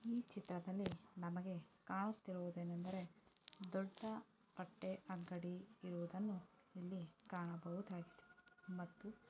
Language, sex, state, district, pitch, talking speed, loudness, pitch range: Kannada, female, Karnataka, Dharwad, 185 Hz, 85 wpm, -49 LUFS, 180-205 Hz